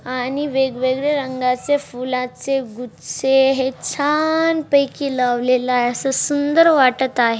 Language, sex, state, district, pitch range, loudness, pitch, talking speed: Marathi, female, Maharashtra, Chandrapur, 250-285 Hz, -18 LUFS, 265 Hz, 105 wpm